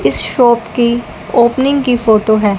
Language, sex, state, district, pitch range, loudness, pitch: Hindi, male, Punjab, Fazilka, 220-245 Hz, -12 LUFS, 235 Hz